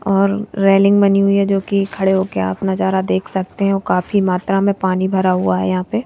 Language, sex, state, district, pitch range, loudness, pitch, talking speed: Hindi, female, Madhya Pradesh, Bhopal, 120-195 Hz, -16 LUFS, 190 Hz, 220 wpm